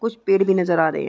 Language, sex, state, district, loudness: Hindi, female, Chhattisgarh, Raigarh, -19 LUFS